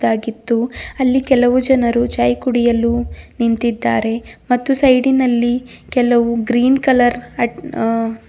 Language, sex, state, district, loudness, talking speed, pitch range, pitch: Kannada, female, Karnataka, Bidar, -16 LUFS, 100 wpm, 230-255 Hz, 240 Hz